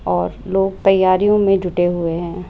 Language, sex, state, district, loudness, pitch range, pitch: Hindi, female, Rajasthan, Jaipur, -17 LUFS, 170-195 Hz, 185 Hz